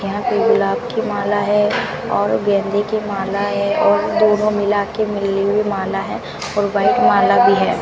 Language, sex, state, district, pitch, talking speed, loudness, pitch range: Hindi, female, Rajasthan, Bikaner, 205 Hz, 175 wpm, -17 LUFS, 200-210 Hz